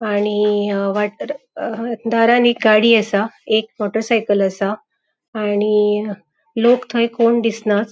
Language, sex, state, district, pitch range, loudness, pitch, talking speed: Konkani, female, Goa, North and South Goa, 210-230 Hz, -17 LUFS, 215 Hz, 105 wpm